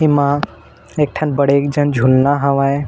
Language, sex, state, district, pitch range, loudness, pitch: Chhattisgarhi, male, Chhattisgarh, Bilaspur, 140-145 Hz, -15 LUFS, 140 Hz